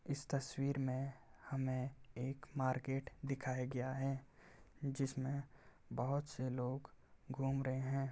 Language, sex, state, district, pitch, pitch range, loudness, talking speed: Hindi, male, Uttar Pradesh, Gorakhpur, 135 Hz, 130-140 Hz, -42 LUFS, 120 wpm